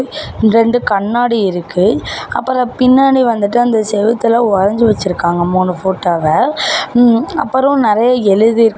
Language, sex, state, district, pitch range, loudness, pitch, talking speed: Tamil, female, Tamil Nadu, Namakkal, 195-245 Hz, -12 LUFS, 230 Hz, 110 wpm